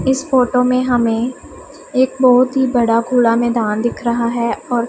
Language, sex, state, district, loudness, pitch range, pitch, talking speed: Hindi, female, Punjab, Pathankot, -15 LUFS, 235-255 Hz, 245 Hz, 170 wpm